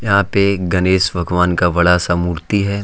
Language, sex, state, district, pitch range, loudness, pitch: Hindi, male, Jharkhand, Ranchi, 90-100 Hz, -15 LUFS, 90 Hz